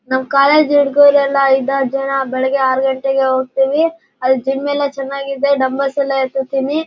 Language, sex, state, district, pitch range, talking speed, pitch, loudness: Kannada, male, Karnataka, Shimoga, 265-280 Hz, 150 wpm, 275 Hz, -15 LUFS